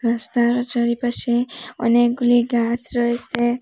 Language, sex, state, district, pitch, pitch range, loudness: Bengali, female, Assam, Hailakandi, 240 Hz, 235-245 Hz, -18 LUFS